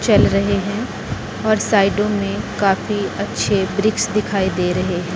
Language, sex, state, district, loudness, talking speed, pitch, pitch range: Hindi, female, Chandigarh, Chandigarh, -18 LUFS, 150 wpm, 200 Hz, 190-210 Hz